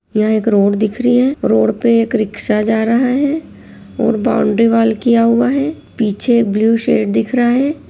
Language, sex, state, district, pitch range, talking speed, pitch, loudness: Hindi, female, Chhattisgarh, Rajnandgaon, 215-245 Hz, 190 wpm, 230 Hz, -14 LUFS